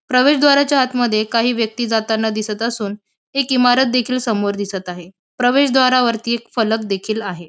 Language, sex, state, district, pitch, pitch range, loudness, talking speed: Marathi, female, Maharashtra, Aurangabad, 230 Hz, 215-255 Hz, -17 LUFS, 150 wpm